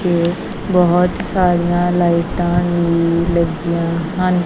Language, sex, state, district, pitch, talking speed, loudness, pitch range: Punjabi, female, Punjab, Kapurthala, 175 Hz, 95 wpm, -16 LUFS, 170-180 Hz